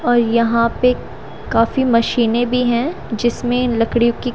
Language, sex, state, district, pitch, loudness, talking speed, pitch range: Hindi, female, Haryana, Rohtak, 240 Hz, -17 LUFS, 140 wpm, 230-245 Hz